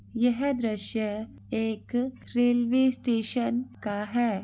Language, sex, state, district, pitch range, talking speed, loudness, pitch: Hindi, female, Bihar, East Champaran, 220-245 Hz, 95 wpm, -28 LUFS, 240 Hz